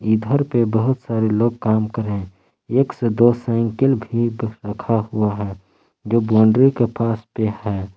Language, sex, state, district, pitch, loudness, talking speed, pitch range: Hindi, male, Jharkhand, Palamu, 110 Hz, -19 LUFS, 175 wpm, 105-120 Hz